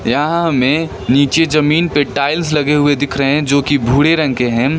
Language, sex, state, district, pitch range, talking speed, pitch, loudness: Hindi, male, West Bengal, Darjeeling, 135-155 Hz, 215 wpm, 145 Hz, -14 LUFS